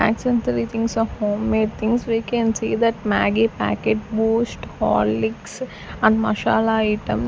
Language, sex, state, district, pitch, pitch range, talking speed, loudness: English, female, Chandigarh, Chandigarh, 220 Hz, 210-225 Hz, 130 wpm, -20 LUFS